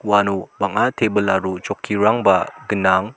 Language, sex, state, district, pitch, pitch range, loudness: Garo, male, Meghalaya, South Garo Hills, 100 Hz, 95-105 Hz, -19 LUFS